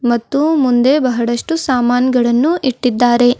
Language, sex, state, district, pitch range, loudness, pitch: Kannada, female, Karnataka, Bidar, 240-275 Hz, -14 LUFS, 250 Hz